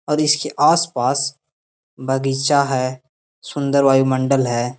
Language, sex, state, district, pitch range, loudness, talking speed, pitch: Hindi, male, Bihar, Gaya, 130-140 Hz, -18 LUFS, 100 wpm, 135 Hz